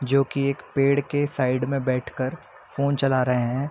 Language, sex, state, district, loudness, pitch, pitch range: Hindi, male, Chhattisgarh, Bilaspur, -24 LUFS, 135 Hz, 130-140 Hz